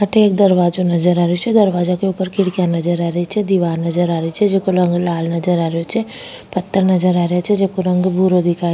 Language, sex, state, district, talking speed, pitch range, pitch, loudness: Rajasthani, female, Rajasthan, Nagaur, 255 wpm, 175-190 Hz, 180 Hz, -16 LUFS